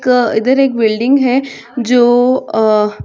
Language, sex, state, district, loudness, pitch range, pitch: Hindi, female, Chhattisgarh, Sarguja, -12 LUFS, 225-260 Hz, 245 Hz